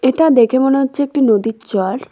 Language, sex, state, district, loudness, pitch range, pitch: Bengali, female, West Bengal, Cooch Behar, -14 LUFS, 225-275 Hz, 255 Hz